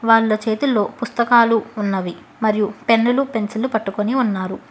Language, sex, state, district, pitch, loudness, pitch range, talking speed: Telugu, female, Telangana, Hyderabad, 225 Hz, -18 LUFS, 210-235 Hz, 115 wpm